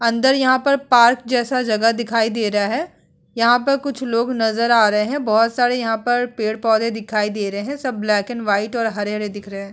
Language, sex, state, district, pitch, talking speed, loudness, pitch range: Hindi, female, Chhattisgarh, Sukma, 230 Hz, 215 wpm, -18 LUFS, 215-250 Hz